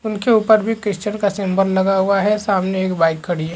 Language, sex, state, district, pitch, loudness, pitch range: Chhattisgarhi, male, Chhattisgarh, Jashpur, 195 Hz, -17 LUFS, 190-210 Hz